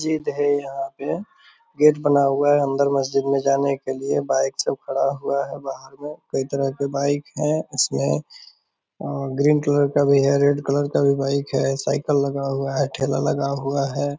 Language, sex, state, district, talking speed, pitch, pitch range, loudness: Hindi, male, Bihar, Purnia, 205 wpm, 140 Hz, 135-145 Hz, -21 LUFS